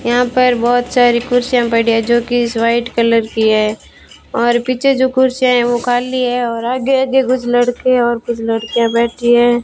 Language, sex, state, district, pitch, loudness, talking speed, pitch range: Hindi, female, Rajasthan, Bikaner, 240 Hz, -14 LUFS, 200 wpm, 235-250 Hz